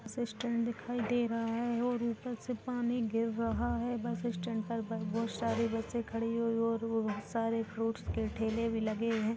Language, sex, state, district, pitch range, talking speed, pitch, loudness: Hindi, female, Chhattisgarh, Kabirdham, 225-235 Hz, 185 wpm, 230 Hz, -35 LUFS